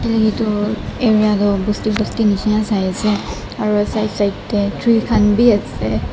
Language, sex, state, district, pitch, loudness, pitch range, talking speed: Nagamese, male, Nagaland, Dimapur, 210 Hz, -17 LUFS, 205-220 Hz, 145 wpm